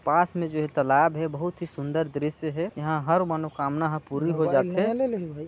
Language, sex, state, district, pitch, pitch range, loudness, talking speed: Chhattisgarhi, male, Chhattisgarh, Sarguja, 160 Hz, 150-170 Hz, -26 LUFS, 195 wpm